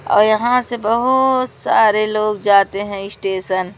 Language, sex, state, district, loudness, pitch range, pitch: Hindi, female, Madhya Pradesh, Umaria, -16 LUFS, 200-240 Hz, 215 Hz